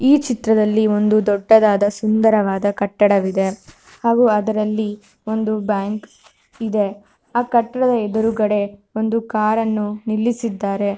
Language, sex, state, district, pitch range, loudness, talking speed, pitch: Kannada, female, Karnataka, Mysore, 205-225 Hz, -18 LUFS, 95 wpm, 215 Hz